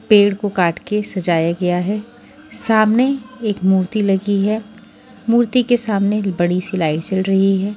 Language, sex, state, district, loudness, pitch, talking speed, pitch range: Hindi, female, Haryana, Charkhi Dadri, -17 LUFS, 205 Hz, 160 wpm, 190-220 Hz